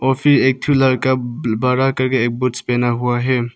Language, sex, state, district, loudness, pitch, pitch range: Hindi, male, Arunachal Pradesh, Papum Pare, -17 LUFS, 130 Hz, 120-130 Hz